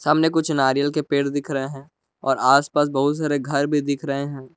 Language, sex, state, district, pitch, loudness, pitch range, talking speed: Hindi, male, Jharkhand, Palamu, 140 Hz, -21 LUFS, 135-150 Hz, 210 wpm